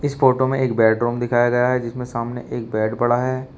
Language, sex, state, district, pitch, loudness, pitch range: Hindi, male, Uttar Pradesh, Shamli, 120 Hz, -20 LUFS, 120-130 Hz